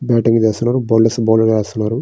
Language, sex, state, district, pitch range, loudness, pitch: Telugu, male, Andhra Pradesh, Srikakulam, 110-115 Hz, -14 LUFS, 115 Hz